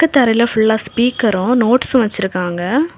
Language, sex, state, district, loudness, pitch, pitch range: Tamil, female, Tamil Nadu, Kanyakumari, -15 LUFS, 235 Hz, 210-250 Hz